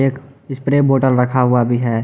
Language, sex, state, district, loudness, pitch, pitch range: Hindi, male, Jharkhand, Garhwa, -15 LUFS, 130 Hz, 125-135 Hz